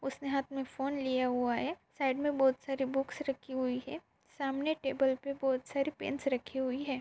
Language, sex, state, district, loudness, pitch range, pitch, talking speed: Hindi, female, Maharashtra, Pune, -34 LUFS, 260-275 Hz, 270 Hz, 205 wpm